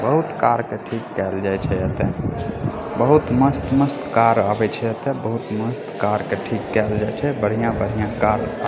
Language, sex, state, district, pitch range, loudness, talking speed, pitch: Maithili, male, Bihar, Madhepura, 105-130 Hz, -21 LUFS, 185 wpm, 115 Hz